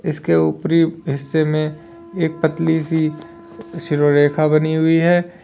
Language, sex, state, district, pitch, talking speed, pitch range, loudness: Hindi, male, Uttar Pradesh, Lalitpur, 160 Hz, 120 wpm, 155-165 Hz, -17 LUFS